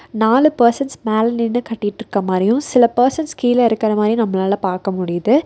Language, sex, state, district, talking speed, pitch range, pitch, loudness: Tamil, female, Tamil Nadu, Nilgiris, 155 wpm, 205-245 Hz, 225 Hz, -16 LUFS